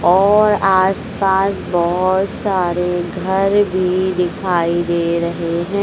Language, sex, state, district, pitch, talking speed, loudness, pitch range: Hindi, female, Madhya Pradesh, Dhar, 185 Hz, 105 wpm, -16 LUFS, 175-195 Hz